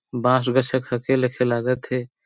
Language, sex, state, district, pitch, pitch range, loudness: Sadri, male, Chhattisgarh, Jashpur, 125 Hz, 125-130 Hz, -22 LUFS